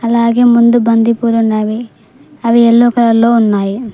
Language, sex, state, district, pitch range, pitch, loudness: Telugu, female, Telangana, Mahabubabad, 225-235 Hz, 235 Hz, -10 LUFS